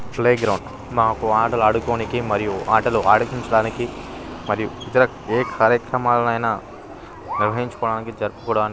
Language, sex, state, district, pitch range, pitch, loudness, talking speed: Telugu, male, Telangana, Nalgonda, 110-120 Hz, 115 Hz, -20 LUFS, 90 wpm